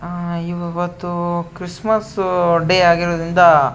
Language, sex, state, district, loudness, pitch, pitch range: Kannada, male, Karnataka, Shimoga, -17 LUFS, 175 Hz, 170-180 Hz